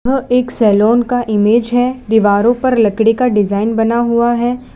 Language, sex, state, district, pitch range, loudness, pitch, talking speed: Hindi, female, Gujarat, Valsad, 220-245 Hz, -13 LUFS, 235 Hz, 175 wpm